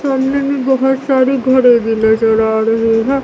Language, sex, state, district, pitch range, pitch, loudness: Hindi, female, Bihar, Katihar, 225-270 Hz, 260 Hz, -13 LUFS